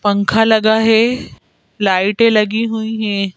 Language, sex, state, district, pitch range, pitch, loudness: Hindi, female, Madhya Pradesh, Bhopal, 205-225 Hz, 220 Hz, -14 LUFS